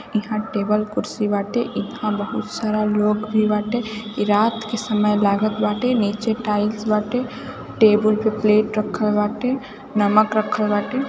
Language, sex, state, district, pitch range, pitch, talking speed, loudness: Hindi, female, Bihar, East Champaran, 210-220 Hz, 215 Hz, 150 wpm, -20 LUFS